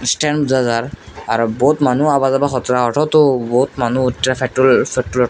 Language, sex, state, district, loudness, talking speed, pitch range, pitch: Bengali, male, Assam, Hailakandi, -15 LUFS, 115 wpm, 125-140 Hz, 130 Hz